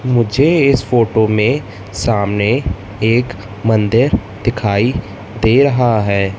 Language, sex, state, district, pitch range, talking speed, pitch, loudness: Hindi, male, Madhya Pradesh, Katni, 100-125 Hz, 105 wpm, 110 Hz, -14 LUFS